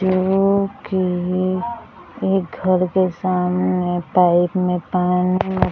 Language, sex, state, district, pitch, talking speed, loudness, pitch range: Hindi, female, Bihar, Gaya, 185 Hz, 105 wpm, -19 LUFS, 180-190 Hz